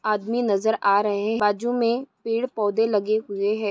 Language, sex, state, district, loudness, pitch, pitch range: Hindi, female, Maharashtra, Aurangabad, -23 LUFS, 215 Hz, 205-230 Hz